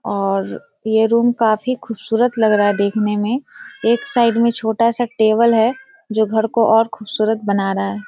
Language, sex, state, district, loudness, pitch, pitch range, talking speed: Hindi, female, Bihar, Kishanganj, -17 LUFS, 225 Hz, 215-235 Hz, 185 wpm